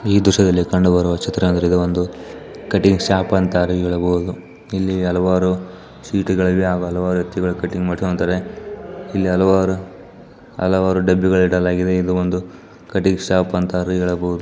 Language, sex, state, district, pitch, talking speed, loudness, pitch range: Kannada, male, Karnataka, Chamarajanagar, 90 Hz, 125 wpm, -18 LUFS, 90-95 Hz